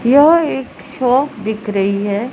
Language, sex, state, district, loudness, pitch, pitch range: Hindi, female, Punjab, Pathankot, -15 LUFS, 245 Hz, 210-280 Hz